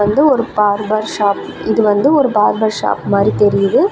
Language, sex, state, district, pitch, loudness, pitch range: Tamil, female, Tamil Nadu, Namakkal, 210 Hz, -14 LUFS, 205-225 Hz